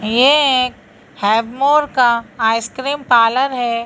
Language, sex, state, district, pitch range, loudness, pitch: Hindi, female, Madhya Pradesh, Bhopal, 230-270 Hz, -15 LUFS, 245 Hz